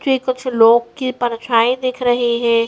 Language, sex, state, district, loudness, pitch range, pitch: Hindi, female, Madhya Pradesh, Bhopal, -16 LUFS, 235-255 Hz, 245 Hz